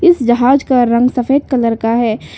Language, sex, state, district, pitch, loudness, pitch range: Hindi, female, Arunachal Pradesh, Lower Dibang Valley, 245 Hz, -13 LUFS, 235-265 Hz